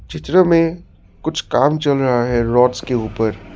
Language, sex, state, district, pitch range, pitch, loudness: Hindi, male, Assam, Sonitpur, 115-160 Hz, 125 Hz, -17 LUFS